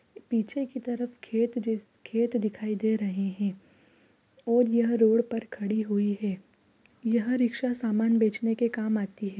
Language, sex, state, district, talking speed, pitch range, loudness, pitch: Hindi, female, Bihar, East Champaran, 160 wpm, 210-235 Hz, -28 LUFS, 225 Hz